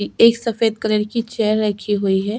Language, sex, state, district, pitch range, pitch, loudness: Hindi, female, Chhattisgarh, Sukma, 205-230 Hz, 215 Hz, -18 LUFS